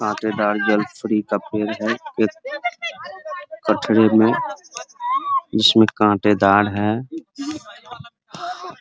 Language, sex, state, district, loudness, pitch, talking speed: Hindi, male, Bihar, Muzaffarpur, -19 LUFS, 110 Hz, 80 wpm